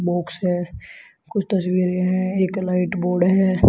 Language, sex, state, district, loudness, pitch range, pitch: Hindi, male, Uttar Pradesh, Shamli, -21 LUFS, 180-190 Hz, 180 Hz